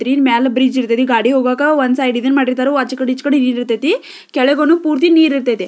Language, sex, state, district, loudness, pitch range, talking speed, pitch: Kannada, female, Karnataka, Belgaum, -14 LUFS, 250-280 Hz, 200 wpm, 260 Hz